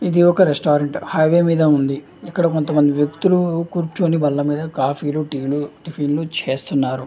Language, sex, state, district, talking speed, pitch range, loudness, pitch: Telugu, male, Andhra Pradesh, Anantapur, 160 wpm, 145-170 Hz, -18 LUFS, 155 Hz